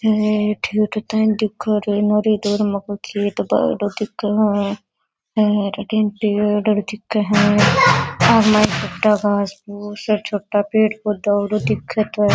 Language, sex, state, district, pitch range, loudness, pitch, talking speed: Rajasthani, female, Rajasthan, Nagaur, 205-215 Hz, -18 LUFS, 210 Hz, 70 wpm